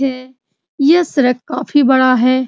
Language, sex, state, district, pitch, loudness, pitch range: Hindi, female, Bihar, Supaul, 260 Hz, -13 LUFS, 255-285 Hz